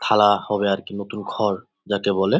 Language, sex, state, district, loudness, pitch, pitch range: Bengali, male, West Bengal, Jalpaiguri, -22 LUFS, 100 Hz, 100-105 Hz